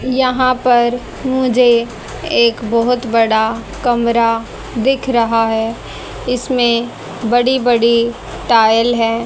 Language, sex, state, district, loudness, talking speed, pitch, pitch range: Hindi, female, Haryana, Charkhi Dadri, -14 LUFS, 95 wpm, 235 Hz, 230-250 Hz